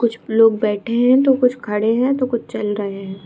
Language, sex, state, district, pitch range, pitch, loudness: Hindi, female, Bihar, Saharsa, 210-250 Hz, 225 Hz, -17 LUFS